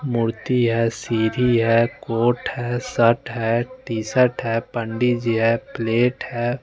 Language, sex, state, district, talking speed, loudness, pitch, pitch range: Hindi, male, Chandigarh, Chandigarh, 135 wpm, -21 LUFS, 115 Hz, 115-120 Hz